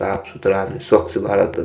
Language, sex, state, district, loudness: Maithili, male, Bihar, Madhepura, -19 LUFS